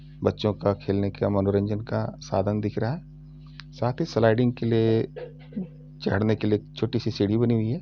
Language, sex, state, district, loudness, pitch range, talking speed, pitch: Hindi, male, Uttar Pradesh, Jalaun, -25 LUFS, 105-145 Hz, 185 wpm, 115 Hz